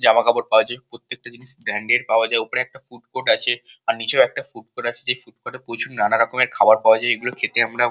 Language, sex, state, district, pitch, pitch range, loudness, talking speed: Bengali, male, West Bengal, Kolkata, 120 Hz, 115-125 Hz, -18 LUFS, 245 wpm